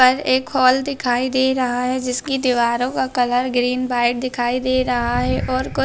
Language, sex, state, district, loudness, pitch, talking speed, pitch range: Hindi, female, Maharashtra, Dhule, -19 LUFS, 255 Hz, 195 wpm, 245-260 Hz